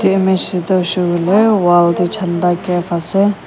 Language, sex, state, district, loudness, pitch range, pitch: Nagamese, female, Nagaland, Kohima, -14 LUFS, 175-195 Hz, 180 Hz